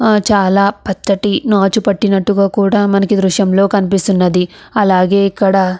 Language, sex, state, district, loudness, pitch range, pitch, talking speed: Telugu, female, Andhra Pradesh, Visakhapatnam, -13 LUFS, 195-205 Hz, 200 Hz, 105 wpm